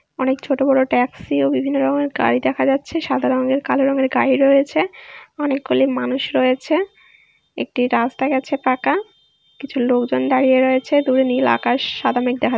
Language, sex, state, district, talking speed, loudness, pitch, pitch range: Bengali, female, West Bengal, Malda, 155 wpm, -18 LUFS, 265 Hz, 250-275 Hz